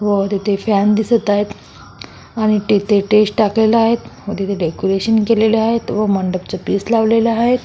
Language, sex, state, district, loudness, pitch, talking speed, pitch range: Marathi, female, Maharashtra, Solapur, -15 LUFS, 210 Hz, 155 wpm, 200-225 Hz